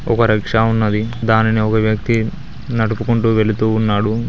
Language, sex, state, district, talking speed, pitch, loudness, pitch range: Telugu, male, Telangana, Mahabubabad, 125 wpm, 110 Hz, -16 LUFS, 110-115 Hz